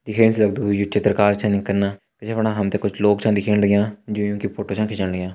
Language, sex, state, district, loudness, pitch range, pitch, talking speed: Hindi, male, Uttarakhand, Tehri Garhwal, -20 LUFS, 100-105 Hz, 105 Hz, 245 wpm